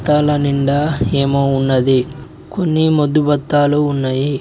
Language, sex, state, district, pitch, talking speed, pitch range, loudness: Telugu, male, Telangana, Mahabubabad, 145 Hz, 95 wpm, 140-150 Hz, -15 LUFS